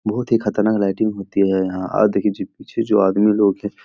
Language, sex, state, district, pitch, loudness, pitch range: Hindi, male, Bihar, Jahanabad, 105 Hz, -18 LUFS, 95-110 Hz